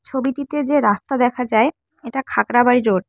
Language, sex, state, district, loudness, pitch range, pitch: Bengali, female, West Bengal, Cooch Behar, -18 LUFS, 235-275 Hz, 250 Hz